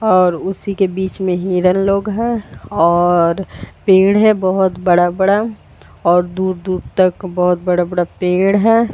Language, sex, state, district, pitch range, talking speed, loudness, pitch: Hindi, female, Uttar Pradesh, Varanasi, 180-195 Hz, 145 wpm, -15 LUFS, 185 Hz